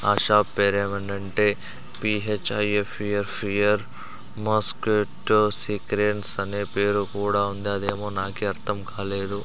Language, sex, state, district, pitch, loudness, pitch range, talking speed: Telugu, male, Andhra Pradesh, Sri Satya Sai, 100 Hz, -24 LUFS, 100-105 Hz, 120 wpm